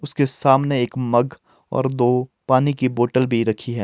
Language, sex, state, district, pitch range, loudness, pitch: Hindi, male, Himachal Pradesh, Shimla, 120-135 Hz, -20 LUFS, 130 Hz